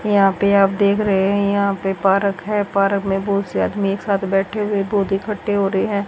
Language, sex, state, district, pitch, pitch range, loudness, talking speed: Hindi, female, Haryana, Rohtak, 200 Hz, 195-200 Hz, -18 LUFS, 235 wpm